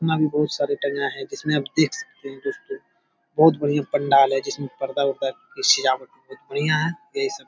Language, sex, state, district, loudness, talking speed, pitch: Hindi, male, Bihar, Jamui, -22 LUFS, 200 wpm, 155 Hz